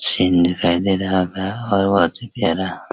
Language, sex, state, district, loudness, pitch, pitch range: Hindi, male, Bihar, Araria, -18 LUFS, 95 Hz, 90-100 Hz